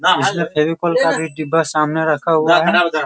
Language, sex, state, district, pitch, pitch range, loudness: Hindi, male, Bihar, Sitamarhi, 160 Hz, 155-165 Hz, -16 LUFS